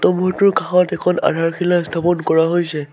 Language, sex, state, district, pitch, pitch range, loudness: Assamese, male, Assam, Sonitpur, 175 Hz, 165-180 Hz, -17 LUFS